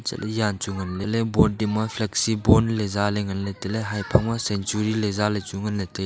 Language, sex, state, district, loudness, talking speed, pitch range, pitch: Wancho, male, Arunachal Pradesh, Longding, -24 LUFS, 215 wpm, 100-110 Hz, 105 Hz